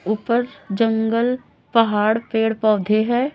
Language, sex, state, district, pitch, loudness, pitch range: Hindi, female, Chhattisgarh, Raipur, 225 Hz, -20 LUFS, 215-235 Hz